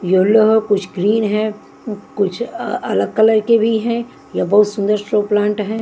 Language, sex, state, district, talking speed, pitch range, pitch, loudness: Hindi, female, Bihar, Kaimur, 165 wpm, 205-220 Hz, 210 Hz, -16 LUFS